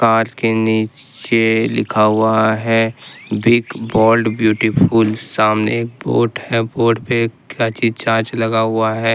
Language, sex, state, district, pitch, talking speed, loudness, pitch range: Hindi, male, Jharkhand, Ranchi, 115 Hz, 140 wpm, -16 LUFS, 110-115 Hz